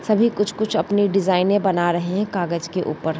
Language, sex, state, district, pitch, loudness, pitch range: Hindi, female, Bihar, East Champaran, 190 Hz, -20 LUFS, 175-205 Hz